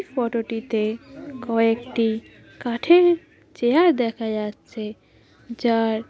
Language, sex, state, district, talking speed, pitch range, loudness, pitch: Bengali, female, West Bengal, Paschim Medinipur, 90 wpm, 225-260 Hz, -22 LUFS, 235 Hz